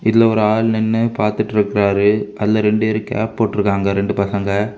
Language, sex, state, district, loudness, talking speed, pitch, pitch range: Tamil, male, Tamil Nadu, Kanyakumari, -17 LUFS, 150 wpm, 105 Hz, 100-110 Hz